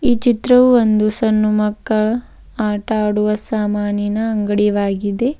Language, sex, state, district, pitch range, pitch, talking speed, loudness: Kannada, female, Karnataka, Bidar, 210-230 Hz, 215 Hz, 100 wpm, -16 LUFS